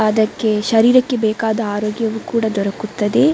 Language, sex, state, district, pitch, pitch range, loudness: Kannada, female, Karnataka, Dakshina Kannada, 220 Hz, 210-225 Hz, -17 LUFS